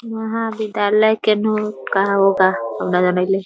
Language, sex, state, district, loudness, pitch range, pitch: Hindi, female, Bihar, Muzaffarpur, -17 LUFS, 190-215 Hz, 210 Hz